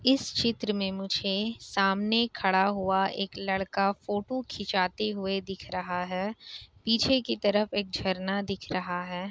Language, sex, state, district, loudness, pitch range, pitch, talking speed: Hindi, female, Bihar, Kishanganj, -29 LUFS, 190-215 Hz, 195 Hz, 140 wpm